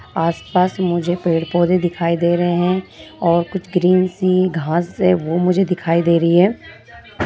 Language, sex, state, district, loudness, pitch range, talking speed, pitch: Hindi, female, Bihar, Madhepura, -17 LUFS, 170-185 Hz, 165 wpm, 175 Hz